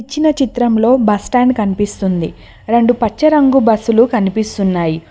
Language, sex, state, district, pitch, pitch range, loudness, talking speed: Telugu, female, Telangana, Mahabubabad, 225 Hz, 205-250 Hz, -13 LUFS, 80 wpm